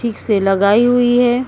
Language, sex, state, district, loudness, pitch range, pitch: Hindi, female, Uttar Pradesh, Jyotiba Phule Nagar, -14 LUFS, 205-245 Hz, 235 Hz